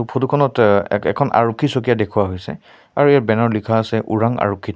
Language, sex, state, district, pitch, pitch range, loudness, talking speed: Assamese, male, Assam, Sonitpur, 115 Hz, 105-130 Hz, -17 LUFS, 240 wpm